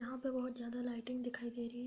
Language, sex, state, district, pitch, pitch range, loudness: Hindi, female, Uttar Pradesh, Gorakhpur, 245 Hz, 240-250 Hz, -42 LUFS